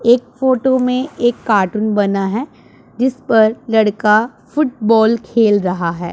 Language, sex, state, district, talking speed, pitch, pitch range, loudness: Hindi, female, Punjab, Pathankot, 135 wpm, 225 Hz, 210-250 Hz, -15 LUFS